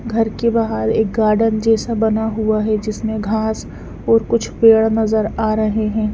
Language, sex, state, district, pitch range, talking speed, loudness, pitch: Hindi, female, Punjab, Fazilka, 215-220 Hz, 175 wpm, -17 LUFS, 220 Hz